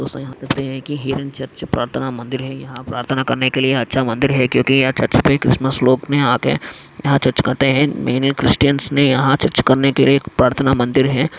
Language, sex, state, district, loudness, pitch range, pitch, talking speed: Hindi, male, Maharashtra, Aurangabad, -16 LUFS, 130-140 Hz, 135 Hz, 215 wpm